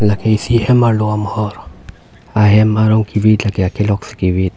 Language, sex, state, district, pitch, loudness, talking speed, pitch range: Karbi, male, Assam, Karbi Anglong, 105 Hz, -14 LUFS, 160 wpm, 105-110 Hz